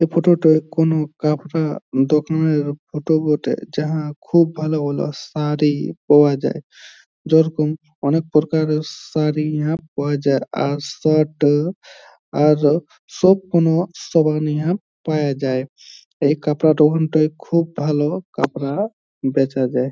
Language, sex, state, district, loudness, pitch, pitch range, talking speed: Bengali, male, West Bengal, Jhargram, -19 LUFS, 155 Hz, 145-160 Hz, 135 wpm